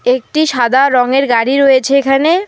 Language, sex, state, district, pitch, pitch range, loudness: Bengali, female, West Bengal, Alipurduar, 270 Hz, 250-275 Hz, -11 LUFS